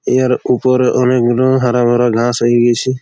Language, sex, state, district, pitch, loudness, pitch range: Bengali, male, West Bengal, Malda, 125 Hz, -13 LUFS, 120-130 Hz